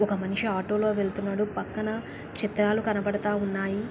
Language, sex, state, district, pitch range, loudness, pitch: Telugu, female, Andhra Pradesh, Krishna, 200-215 Hz, -28 LUFS, 210 Hz